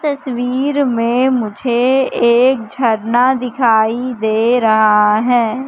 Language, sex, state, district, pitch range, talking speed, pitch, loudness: Hindi, female, Madhya Pradesh, Katni, 225-255 Hz, 95 wpm, 245 Hz, -14 LUFS